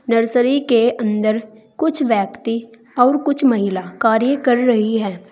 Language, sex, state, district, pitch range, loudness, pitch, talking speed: Hindi, female, Uttar Pradesh, Saharanpur, 215-250 Hz, -17 LUFS, 230 Hz, 135 wpm